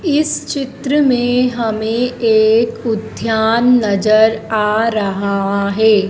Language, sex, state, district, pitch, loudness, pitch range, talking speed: Hindi, female, Madhya Pradesh, Dhar, 225 Hz, -15 LUFS, 215-245 Hz, 100 wpm